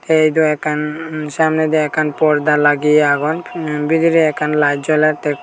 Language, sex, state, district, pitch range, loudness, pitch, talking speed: Chakma, male, Tripura, Dhalai, 150-155 Hz, -15 LUFS, 155 Hz, 145 wpm